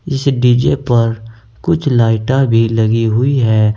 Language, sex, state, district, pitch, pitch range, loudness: Hindi, male, Uttar Pradesh, Saharanpur, 115 Hz, 115-135 Hz, -13 LUFS